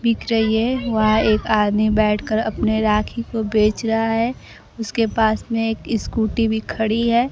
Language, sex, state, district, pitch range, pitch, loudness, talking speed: Hindi, female, Bihar, Kaimur, 215-230 Hz, 220 Hz, -19 LUFS, 170 wpm